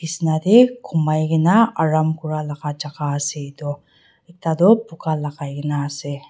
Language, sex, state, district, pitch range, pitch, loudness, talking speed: Nagamese, female, Nagaland, Dimapur, 145-165 Hz, 155 Hz, -19 LUFS, 135 wpm